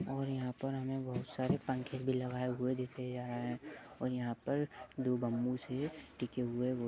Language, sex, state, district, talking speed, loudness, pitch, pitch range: Hindi, male, Uttar Pradesh, Gorakhpur, 210 wpm, -39 LUFS, 125 Hz, 125-135 Hz